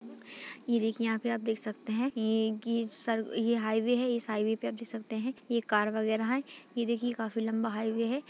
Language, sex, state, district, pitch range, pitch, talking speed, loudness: Hindi, female, Chhattisgarh, Sarguja, 220-235 Hz, 225 Hz, 230 wpm, -32 LUFS